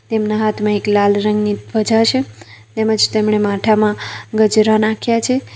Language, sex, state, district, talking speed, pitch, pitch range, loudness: Gujarati, female, Gujarat, Valsad, 140 wpm, 215 Hz, 210-220 Hz, -15 LUFS